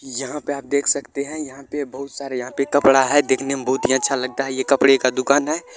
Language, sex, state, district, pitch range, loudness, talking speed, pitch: Hindi, male, Bihar, Araria, 130-140 Hz, -20 LUFS, 270 wpm, 135 Hz